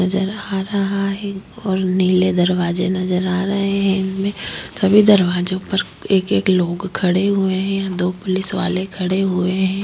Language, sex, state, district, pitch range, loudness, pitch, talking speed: Hindi, female, Maharashtra, Chandrapur, 185-195 Hz, -18 LUFS, 190 Hz, 165 wpm